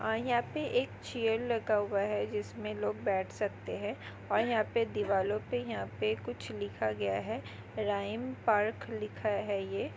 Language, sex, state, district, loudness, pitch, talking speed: Hindi, female, Maharashtra, Nagpur, -34 LUFS, 205 Hz, 170 wpm